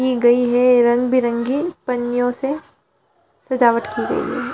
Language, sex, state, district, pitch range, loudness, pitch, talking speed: Hindi, female, Chhattisgarh, Bilaspur, 240-255 Hz, -18 LUFS, 245 Hz, 130 wpm